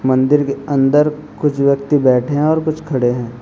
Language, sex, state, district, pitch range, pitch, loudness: Hindi, male, Uttar Pradesh, Shamli, 130-150 Hz, 140 Hz, -15 LUFS